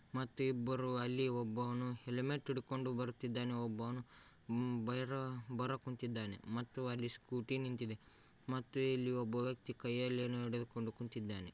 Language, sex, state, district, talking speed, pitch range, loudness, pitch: Kannada, male, Karnataka, Raichur, 105 wpm, 120-130 Hz, -41 LUFS, 125 Hz